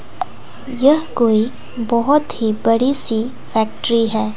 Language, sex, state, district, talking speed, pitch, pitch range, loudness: Hindi, female, Bihar, West Champaran, 110 wpm, 230 Hz, 220-260 Hz, -17 LUFS